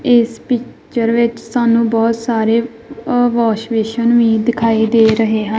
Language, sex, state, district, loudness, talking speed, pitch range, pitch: Punjabi, female, Punjab, Kapurthala, -14 LUFS, 150 wpm, 225-235 Hz, 230 Hz